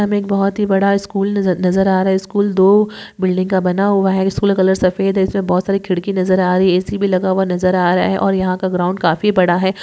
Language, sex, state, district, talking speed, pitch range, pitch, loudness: Hindi, female, Maharashtra, Chandrapur, 270 wpm, 185-200 Hz, 190 Hz, -15 LUFS